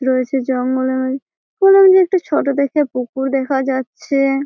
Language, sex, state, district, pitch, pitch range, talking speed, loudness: Bengali, female, West Bengal, Malda, 270 Hz, 260-295 Hz, 160 wpm, -16 LUFS